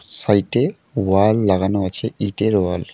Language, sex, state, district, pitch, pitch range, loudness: Bengali, male, West Bengal, Alipurduar, 100 Hz, 95-110 Hz, -19 LUFS